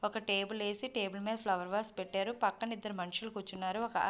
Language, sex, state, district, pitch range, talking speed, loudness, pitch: Telugu, female, Andhra Pradesh, Visakhapatnam, 195-220 Hz, 220 wpm, -37 LUFS, 205 Hz